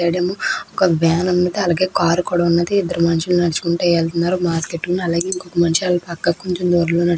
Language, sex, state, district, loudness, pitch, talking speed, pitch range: Telugu, female, Andhra Pradesh, Krishna, -18 LUFS, 175 Hz, 90 wpm, 170-180 Hz